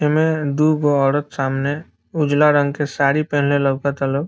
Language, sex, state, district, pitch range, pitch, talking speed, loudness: Bhojpuri, male, Bihar, Saran, 140-150 Hz, 145 Hz, 170 wpm, -18 LUFS